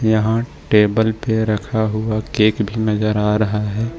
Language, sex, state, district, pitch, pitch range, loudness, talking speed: Hindi, male, Jharkhand, Ranchi, 110 Hz, 105-110 Hz, -18 LUFS, 165 wpm